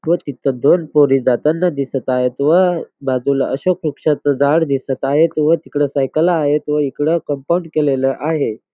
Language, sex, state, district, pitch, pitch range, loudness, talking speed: Marathi, male, Maharashtra, Dhule, 145 Hz, 135-160 Hz, -16 LUFS, 160 wpm